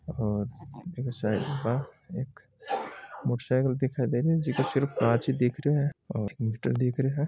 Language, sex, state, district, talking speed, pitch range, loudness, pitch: Marwari, male, Rajasthan, Nagaur, 180 wpm, 120-140 Hz, -29 LUFS, 130 Hz